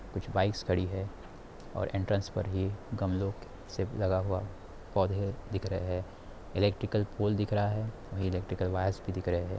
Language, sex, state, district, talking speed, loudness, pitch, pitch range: Hindi, male, Bihar, Darbhanga, 190 wpm, -33 LUFS, 95 Hz, 95-100 Hz